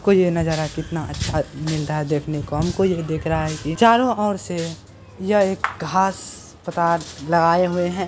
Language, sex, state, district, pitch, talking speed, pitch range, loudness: Hindi, female, Bihar, Purnia, 170 Hz, 195 wpm, 155-190 Hz, -21 LUFS